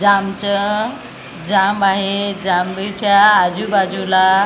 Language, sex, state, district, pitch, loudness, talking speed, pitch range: Marathi, female, Maharashtra, Gondia, 195 Hz, -15 LUFS, 65 wpm, 190-205 Hz